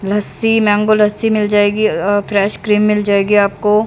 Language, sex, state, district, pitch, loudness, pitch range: Hindi, female, Haryana, Rohtak, 210 Hz, -13 LUFS, 205-215 Hz